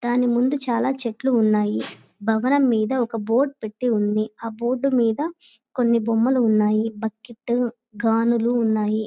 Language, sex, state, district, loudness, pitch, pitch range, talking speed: Telugu, female, Andhra Pradesh, Guntur, -22 LUFS, 235 Hz, 220-250 Hz, 130 wpm